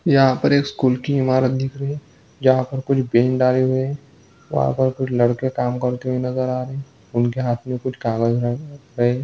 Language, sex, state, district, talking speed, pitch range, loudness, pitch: Hindi, male, Chhattisgarh, Jashpur, 190 wpm, 125-135 Hz, -20 LUFS, 130 Hz